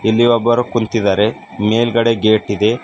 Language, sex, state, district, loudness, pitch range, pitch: Kannada, male, Karnataka, Bidar, -15 LUFS, 105-120 Hz, 115 Hz